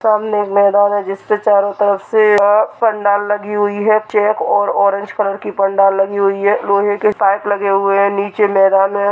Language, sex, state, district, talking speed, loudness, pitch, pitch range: Hindi, male, Uttar Pradesh, Hamirpur, 235 wpm, -14 LUFS, 205 Hz, 200-210 Hz